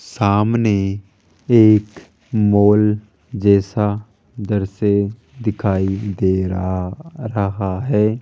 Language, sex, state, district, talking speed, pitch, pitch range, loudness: Hindi, male, Rajasthan, Jaipur, 80 wpm, 105 Hz, 95-105 Hz, -17 LUFS